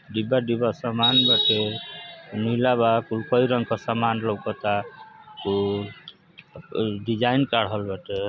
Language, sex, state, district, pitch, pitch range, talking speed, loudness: Bhojpuri, male, Uttar Pradesh, Ghazipur, 115 Hz, 105-120 Hz, 115 wpm, -23 LUFS